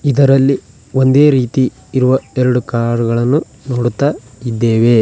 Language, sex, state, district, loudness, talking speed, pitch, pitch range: Kannada, male, Karnataka, Koppal, -14 LUFS, 110 wpm, 125 Hz, 120-135 Hz